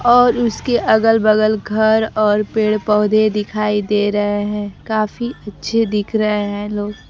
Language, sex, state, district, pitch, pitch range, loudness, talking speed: Hindi, female, Bihar, Kaimur, 215 Hz, 210-220 Hz, -16 LUFS, 150 wpm